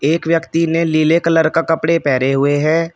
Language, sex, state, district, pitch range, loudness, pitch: Hindi, male, Uttar Pradesh, Shamli, 155-165 Hz, -15 LUFS, 160 Hz